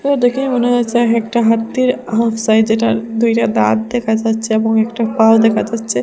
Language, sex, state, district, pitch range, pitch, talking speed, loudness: Bengali, female, Assam, Hailakandi, 220-240 Hz, 230 Hz, 180 wpm, -14 LUFS